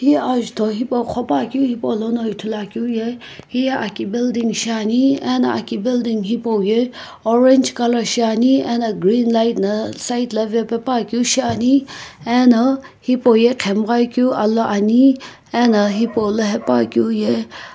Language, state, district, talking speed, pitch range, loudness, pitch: Sumi, Nagaland, Kohima, 90 wpm, 215-245 Hz, -17 LUFS, 230 Hz